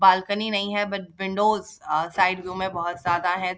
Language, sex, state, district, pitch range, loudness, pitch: Hindi, female, Bihar, Jahanabad, 180-200 Hz, -24 LUFS, 190 Hz